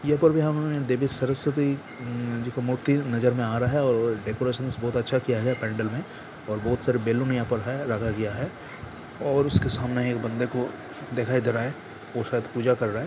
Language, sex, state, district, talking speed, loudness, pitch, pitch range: Hindi, male, Bihar, Jamui, 220 wpm, -26 LUFS, 125 Hz, 120-135 Hz